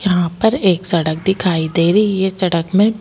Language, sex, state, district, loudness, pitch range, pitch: Hindi, male, Delhi, New Delhi, -16 LUFS, 170-195 Hz, 185 Hz